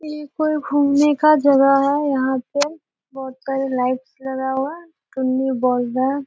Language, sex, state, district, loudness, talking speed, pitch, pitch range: Hindi, female, Bihar, Gopalganj, -19 LUFS, 155 wpm, 275 Hz, 260-290 Hz